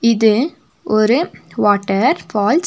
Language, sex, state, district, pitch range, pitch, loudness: Tamil, female, Tamil Nadu, Nilgiris, 215-315 Hz, 230 Hz, -16 LUFS